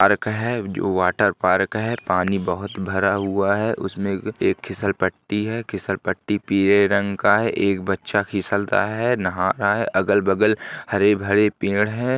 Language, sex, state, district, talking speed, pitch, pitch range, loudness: Hindi, male, Uttar Pradesh, Ghazipur, 165 wpm, 100 Hz, 95-105 Hz, -21 LUFS